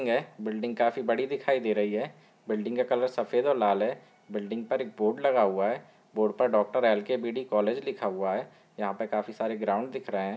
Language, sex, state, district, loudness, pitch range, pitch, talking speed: Hindi, male, Bihar, Samastipur, -29 LUFS, 105-125 Hz, 110 Hz, 225 wpm